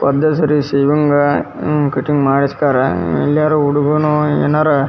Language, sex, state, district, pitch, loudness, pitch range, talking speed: Kannada, male, Karnataka, Dharwad, 145 Hz, -14 LUFS, 140-150 Hz, 110 wpm